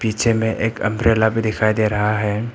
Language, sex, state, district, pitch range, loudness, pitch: Hindi, male, Arunachal Pradesh, Papum Pare, 105-115 Hz, -18 LUFS, 110 Hz